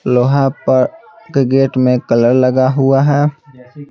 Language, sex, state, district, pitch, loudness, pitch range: Hindi, male, Bihar, Patna, 135 Hz, -13 LUFS, 125-145 Hz